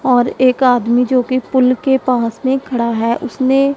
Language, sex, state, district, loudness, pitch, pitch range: Hindi, female, Punjab, Pathankot, -14 LUFS, 255 Hz, 245-265 Hz